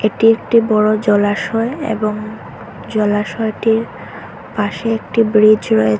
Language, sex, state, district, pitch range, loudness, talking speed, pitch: Bengali, female, Tripura, Unakoti, 210-225 Hz, -15 LUFS, 100 wpm, 215 Hz